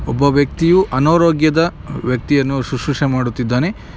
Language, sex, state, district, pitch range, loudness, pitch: Kannada, male, Karnataka, Mysore, 130-160 Hz, -16 LUFS, 140 Hz